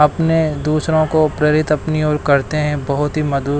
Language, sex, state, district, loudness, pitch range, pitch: Hindi, male, Himachal Pradesh, Shimla, -16 LUFS, 145-155 Hz, 150 Hz